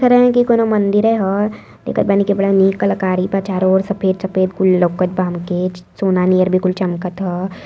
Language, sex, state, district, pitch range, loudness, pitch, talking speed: Hindi, female, Uttar Pradesh, Varanasi, 185-200 Hz, -16 LUFS, 190 Hz, 210 wpm